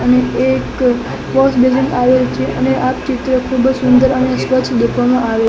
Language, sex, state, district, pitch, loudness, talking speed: Gujarati, male, Gujarat, Gandhinagar, 250 Hz, -14 LUFS, 155 wpm